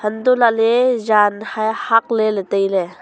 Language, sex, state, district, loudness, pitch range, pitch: Wancho, female, Arunachal Pradesh, Longding, -16 LUFS, 205-230 Hz, 220 Hz